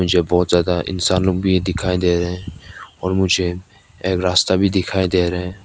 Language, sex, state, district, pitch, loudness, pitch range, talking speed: Hindi, male, Nagaland, Kohima, 90 Hz, -18 LUFS, 90-95 Hz, 200 wpm